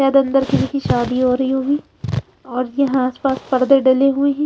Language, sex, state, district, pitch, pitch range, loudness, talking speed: Hindi, female, Haryana, Charkhi Dadri, 265 Hz, 255-275 Hz, -17 LUFS, 215 wpm